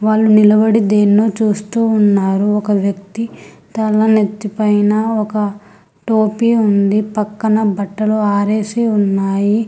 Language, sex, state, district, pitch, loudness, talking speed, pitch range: Telugu, female, Telangana, Hyderabad, 210 Hz, -14 LUFS, 105 wpm, 205-220 Hz